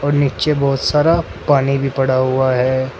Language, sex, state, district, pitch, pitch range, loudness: Hindi, male, Uttar Pradesh, Saharanpur, 135 Hz, 130-145 Hz, -16 LUFS